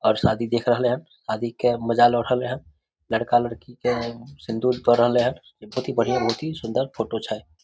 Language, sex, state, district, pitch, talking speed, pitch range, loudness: Maithili, male, Bihar, Samastipur, 120 Hz, 205 wpm, 115-125 Hz, -23 LUFS